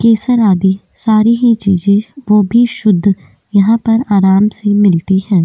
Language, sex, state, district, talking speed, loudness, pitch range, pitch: Hindi, female, Delhi, New Delhi, 155 wpm, -11 LUFS, 195-225 Hz, 210 Hz